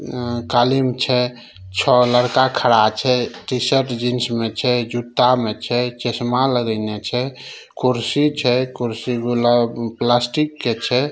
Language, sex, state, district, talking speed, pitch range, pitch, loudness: Maithili, male, Bihar, Samastipur, 125 wpm, 120-125 Hz, 120 Hz, -18 LUFS